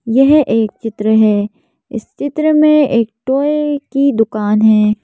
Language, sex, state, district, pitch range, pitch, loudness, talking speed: Hindi, female, Madhya Pradesh, Bhopal, 215-285 Hz, 230 Hz, -13 LUFS, 145 wpm